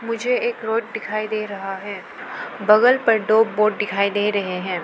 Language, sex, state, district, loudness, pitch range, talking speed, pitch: Hindi, female, Arunachal Pradesh, Lower Dibang Valley, -20 LUFS, 200-225 Hz, 185 wpm, 215 Hz